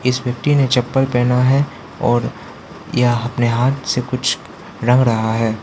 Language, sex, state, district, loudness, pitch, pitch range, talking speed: Hindi, male, Arunachal Pradesh, Lower Dibang Valley, -17 LUFS, 125 Hz, 120-130 Hz, 160 wpm